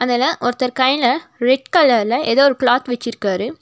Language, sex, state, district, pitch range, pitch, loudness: Tamil, female, Tamil Nadu, Nilgiris, 245-265 Hz, 250 Hz, -16 LUFS